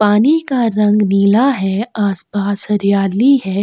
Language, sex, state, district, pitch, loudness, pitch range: Hindi, female, Chhattisgarh, Sukma, 210 Hz, -14 LUFS, 200-235 Hz